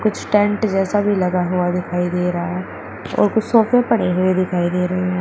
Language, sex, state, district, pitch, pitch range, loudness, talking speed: Hindi, female, Uttar Pradesh, Shamli, 185 Hz, 180-205 Hz, -18 LUFS, 205 wpm